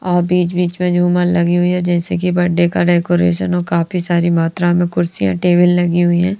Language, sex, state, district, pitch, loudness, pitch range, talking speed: Hindi, female, Haryana, Rohtak, 175 Hz, -15 LUFS, 175-180 Hz, 205 wpm